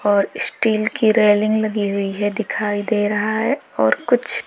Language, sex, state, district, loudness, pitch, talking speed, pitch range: Hindi, female, Uttar Pradesh, Lalitpur, -18 LUFS, 210 Hz, 175 wpm, 205-220 Hz